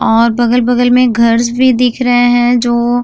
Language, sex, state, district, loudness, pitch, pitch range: Hindi, female, Uttar Pradesh, Jyotiba Phule Nagar, -10 LUFS, 245 Hz, 240-245 Hz